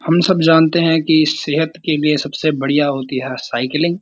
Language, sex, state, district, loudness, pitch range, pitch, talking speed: Hindi, male, Uttarakhand, Uttarkashi, -15 LUFS, 140-165 Hz, 155 Hz, 210 wpm